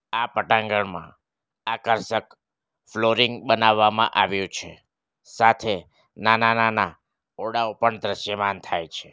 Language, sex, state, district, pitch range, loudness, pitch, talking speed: Gujarati, male, Gujarat, Valsad, 105-115 Hz, -22 LUFS, 110 Hz, 90 wpm